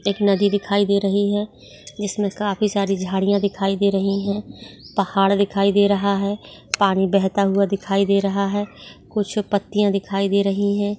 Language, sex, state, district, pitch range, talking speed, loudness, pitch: Hindi, female, Maharashtra, Chandrapur, 195-205 Hz, 175 wpm, -20 LUFS, 200 Hz